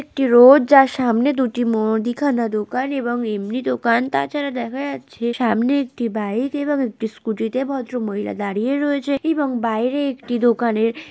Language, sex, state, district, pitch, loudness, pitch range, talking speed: Bengali, female, West Bengal, Jhargram, 245 Hz, -19 LUFS, 230-275 Hz, 145 wpm